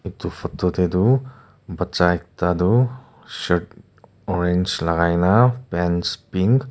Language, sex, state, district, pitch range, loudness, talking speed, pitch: Nagamese, male, Nagaland, Kohima, 90-115 Hz, -20 LUFS, 115 wpm, 90 Hz